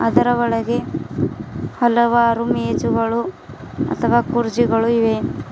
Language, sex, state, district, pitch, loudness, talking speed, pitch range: Kannada, female, Karnataka, Bidar, 235 Hz, -19 LUFS, 75 wpm, 225-235 Hz